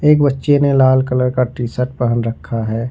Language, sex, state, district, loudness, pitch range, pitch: Hindi, male, Jharkhand, Ranchi, -16 LUFS, 120-140 Hz, 125 Hz